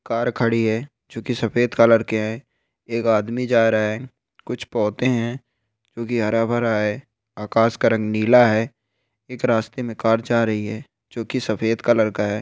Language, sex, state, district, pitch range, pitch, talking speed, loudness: Hindi, male, Rajasthan, Churu, 110-120 Hz, 115 Hz, 195 wpm, -20 LUFS